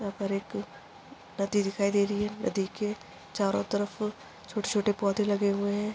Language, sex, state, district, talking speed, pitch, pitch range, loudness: Hindi, female, Bihar, Muzaffarpur, 160 wpm, 205 Hz, 200-210 Hz, -30 LUFS